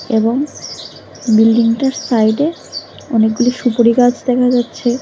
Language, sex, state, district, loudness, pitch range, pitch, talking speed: Bengali, female, Tripura, West Tripura, -14 LUFS, 230-250 Hz, 245 Hz, 95 wpm